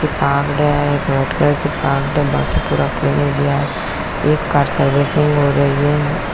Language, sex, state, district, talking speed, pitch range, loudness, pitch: Hindi, female, Bihar, Kishanganj, 75 wpm, 135-145 Hz, -16 LUFS, 145 Hz